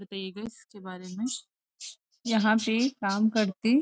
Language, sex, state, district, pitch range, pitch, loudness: Hindi, female, Chhattisgarh, Rajnandgaon, 195-225 Hz, 220 Hz, -28 LUFS